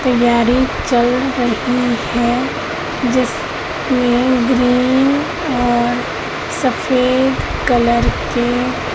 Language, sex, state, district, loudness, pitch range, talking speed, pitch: Hindi, female, Madhya Pradesh, Katni, -16 LUFS, 240-255 Hz, 75 wpm, 250 Hz